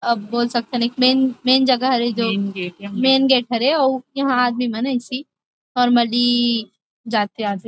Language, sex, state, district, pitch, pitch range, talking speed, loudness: Chhattisgarhi, female, Chhattisgarh, Rajnandgaon, 245 Hz, 230-260 Hz, 170 wpm, -18 LUFS